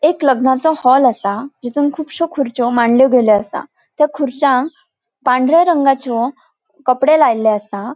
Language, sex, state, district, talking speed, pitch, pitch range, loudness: Konkani, female, Goa, North and South Goa, 130 wpm, 265 Hz, 245-295 Hz, -14 LUFS